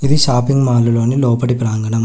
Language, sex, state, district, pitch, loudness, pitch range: Telugu, male, Telangana, Hyderabad, 125 Hz, -14 LUFS, 115-135 Hz